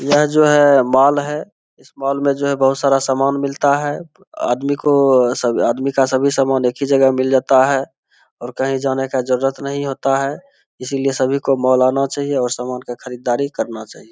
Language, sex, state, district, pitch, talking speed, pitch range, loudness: Hindi, male, Bihar, Saharsa, 135 Hz, 200 wpm, 130-140 Hz, -16 LUFS